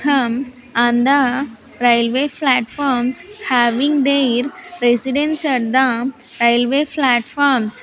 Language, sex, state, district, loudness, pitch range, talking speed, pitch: English, female, Andhra Pradesh, Sri Satya Sai, -16 LUFS, 240-280 Hz, 90 wpm, 260 Hz